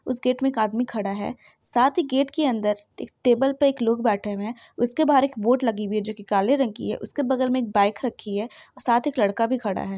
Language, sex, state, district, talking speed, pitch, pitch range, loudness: Hindi, female, Bihar, Saran, 290 wpm, 235 Hz, 210-265 Hz, -23 LUFS